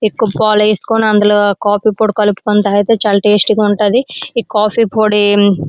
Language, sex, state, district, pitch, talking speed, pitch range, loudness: Telugu, female, Andhra Pradesh, Srikakulam, 210 Hz, 160 wpm, 205-215 Hz, -12 LUFS